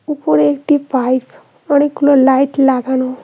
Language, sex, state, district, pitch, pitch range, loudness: Bengali, female, West Bengal, Cooch Behar, 270 Hz, 255-285 Hz, -13 LUFS